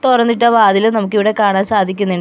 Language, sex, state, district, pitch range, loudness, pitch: Malayalam, female, Kerala, Kollam, 200-230 Hz, -13 LUFS, 210 Hz